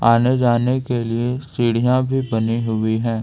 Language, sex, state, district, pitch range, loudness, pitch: Hindi, male, Jharkhand, Ranchi, 115-125 Hz, -19 LUFS, 120 Hz